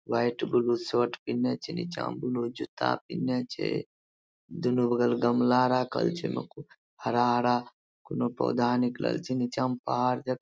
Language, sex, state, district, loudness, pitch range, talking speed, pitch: Maithili, male, Bihar, Madhepura, -29 LUFS, 85-125 Hz, 165 wpm, 120 Hz